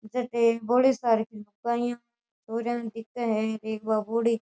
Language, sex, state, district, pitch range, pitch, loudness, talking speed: Rajasthani, female, Rajasthan, Nagaur, 220-235 Hz, 230 Hz, -27 LUFS, 175 wpm